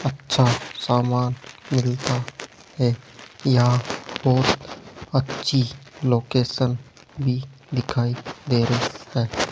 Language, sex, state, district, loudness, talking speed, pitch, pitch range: Hindi, male, Rajasthan, Jaipur, -23 LUFS, 80 wpm, 125 Hz, 120-135 Hz